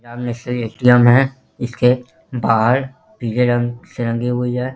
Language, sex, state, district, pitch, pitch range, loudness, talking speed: Hindi, male, Bihar, Jahanabad, 125 Hz, 120-125 Hz, -17 LUFS, 175 wpm